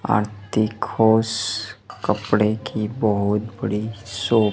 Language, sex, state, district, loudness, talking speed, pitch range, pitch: Hindi, male, Madhya Pradesh, Dhar, -22 LUFS, 80 wpm, 105-110 Hz, 105 Hz